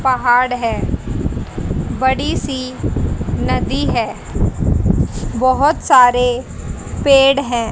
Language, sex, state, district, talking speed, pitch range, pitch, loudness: Hindi, female, Haryana, Jhajjar, 80 wpm, 245-270 Hz, 255 Hz, -16 LUFS